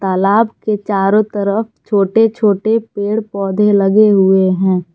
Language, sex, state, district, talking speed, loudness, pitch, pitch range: Hindi, female, Jharkhand, Palamu, 135 wpm, -14 LUFS, 205 Hz, 195-215 Hz